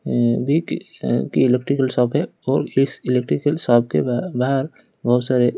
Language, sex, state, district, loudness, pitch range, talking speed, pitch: Hindi, male, Odisha, Khordha, -20 LUFS, 125-140 Hz, 180 wpm, 130 Hz